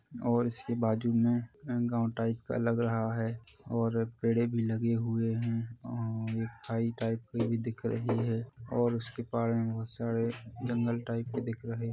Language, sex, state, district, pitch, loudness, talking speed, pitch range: Hindi, male, Chhattisgarh, Rajnandgaon, 115 Hz, -33 LUFS, 185 wpm, 115-120 Hz